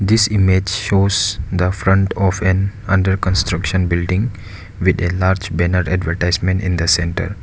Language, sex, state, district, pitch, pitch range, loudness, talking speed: English, male, Arunachal Pradesh, Lower Dibang Valley, 95 Hz, 90-100 Hz, -17 LUFS, 145 wpm